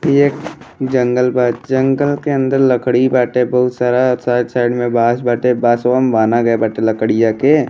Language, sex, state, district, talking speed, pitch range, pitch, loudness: Bhojpuri, male, Uttar Pradesh, Deoria, 180 wpm, 120-130 Hz, 125 Hz, -14 LUFS